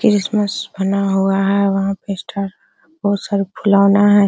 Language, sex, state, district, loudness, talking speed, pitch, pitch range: Hindi, female, Bihar, Araria, -17 LUFS, 155 wpm, 200 Hz, 195-205 Hz